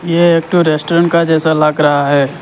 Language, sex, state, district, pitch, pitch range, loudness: Hindi, male, Arunachal Pradesh, Lower Dibang Valley, 160 Hz, 150-170 Hz, -12 LUFS